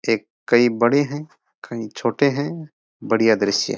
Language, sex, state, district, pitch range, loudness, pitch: Rajasthani, male, Rajasthan, Churu, 115-145 Hz, -20 LUFS, 120 Hz